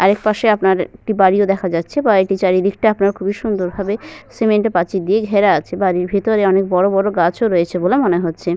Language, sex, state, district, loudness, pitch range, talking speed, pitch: Bengali, female, Jharkhand, Sahebganj, -16 LUFS, 185-215 Hz, 205 wpm, 195 Hz